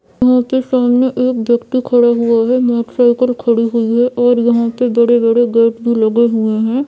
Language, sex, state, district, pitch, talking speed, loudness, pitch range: Hindi, female, Bihar, Saran, 240 Hz, 185 wpm, -13 LUFS, 235-250 Hz